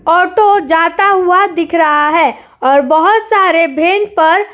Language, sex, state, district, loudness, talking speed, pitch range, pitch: Hindi, female, Uttar Pradesh, Jyotiba Phule Nagar, -10 LUFS, 130 wpm, 320-400 Hz, 340 Hz